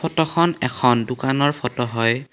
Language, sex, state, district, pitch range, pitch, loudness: Assamese, male, Assam, Kamrup Metropolitan, 120-150 Hz, 130 Hz, -20 LUFS